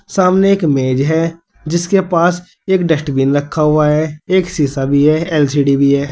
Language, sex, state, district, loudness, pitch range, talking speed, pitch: Hindi, male, Uttar Pradesh, Saharanpur, -14 LUFS, 145-175 Hz, 175 wpm, 155 Hz